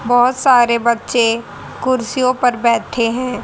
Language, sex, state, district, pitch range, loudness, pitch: Hindi, female, Haryana, Charkhi Dadri, 235-255 Hz, -15 LUFS, 240 Hz